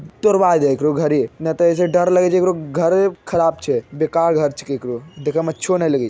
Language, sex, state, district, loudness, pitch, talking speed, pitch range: Magahi, male, Bihar, Jamui, -17 LUFS, 165 Hz, 245 wpm, 150-180 Hz